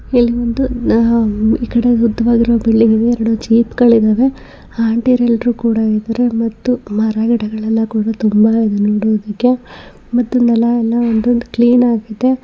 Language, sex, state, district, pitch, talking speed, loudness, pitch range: Kannada, female, Karnataka, Belgaum, 230 Hz, 120 wpm, -14 LUFS, 220-240 Hz